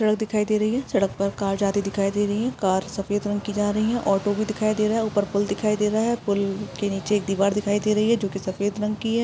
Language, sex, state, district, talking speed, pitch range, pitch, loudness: Hindi, female, Uttar Pradesh, Etah, 300 wpm, 200-215 Hz, 205 Hz, -23 LUFS